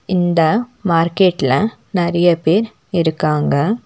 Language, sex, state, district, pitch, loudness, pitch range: Tamil, female, Tamil Nadu, Nilgiris, 175 Hz, -16 LUFS, 165-205 Hz